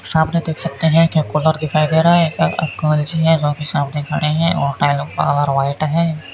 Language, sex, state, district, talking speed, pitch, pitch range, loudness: Hindi, male, Rajasthan, Bikaner, 215 wpm, 155 Hz, 150-165 Hz, -16 LUFS